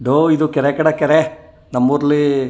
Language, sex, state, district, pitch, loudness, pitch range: Kannada, male, Karnataka, Chamarajanagar, 150 Hz, -15 LUFS, 140-155 Hz